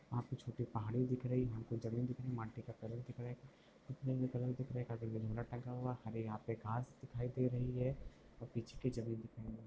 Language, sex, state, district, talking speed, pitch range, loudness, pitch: Hindi, male, Uttar Pradesh, Hamirpur, 200 wpm, 115-125 Hz, -43 LUFS, 120 Hz